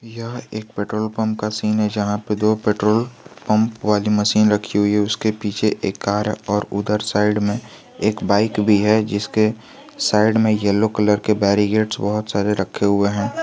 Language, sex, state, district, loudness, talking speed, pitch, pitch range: Hindi, male, Jharkhand, Garhwa, -19 LUFS, 185 wpm, 105 Hz, 105-110 Hz